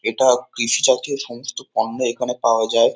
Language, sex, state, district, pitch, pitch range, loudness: Bengali, male, West Bengal, Kolkata, 120 Hz, 115-125 Hz, -19 LUFS